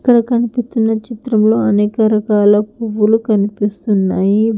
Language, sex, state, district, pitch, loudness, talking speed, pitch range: Telugu, female, Telangana, Hyderabad, 215 Hz, -14 LUFS, 105 wpm, 210-225 Hz